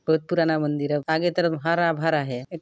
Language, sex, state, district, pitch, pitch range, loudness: Hindi, female, Chhattisgarh, Sarguja, 160 Hz, 150-170 Hz, -23 LUFS